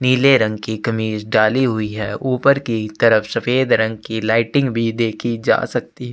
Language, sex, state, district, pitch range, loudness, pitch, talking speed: Hindi, male, Chhattisgarh, Sukma, 110-125 Hz, -17 LUFS, 115 Hz, 185 wpm